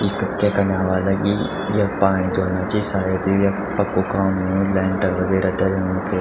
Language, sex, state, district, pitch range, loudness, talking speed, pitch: Garhwali, male, Uttarakhand, Tehri Garhwal, 95-100 Hz, -20 LUFS, 175 wpm, 95 Hz